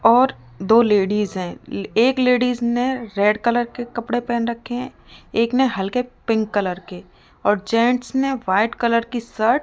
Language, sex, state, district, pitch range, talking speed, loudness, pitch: Hindi, female, Rajasthan, Jaipur, 210-245 Hz, 175 wpm, -20 LUFS, 235 Hz